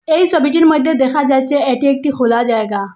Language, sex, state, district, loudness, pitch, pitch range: Bengali, female, Assam, Hailakandi, -13 LUFS, 280 Hz, 240-310 Hz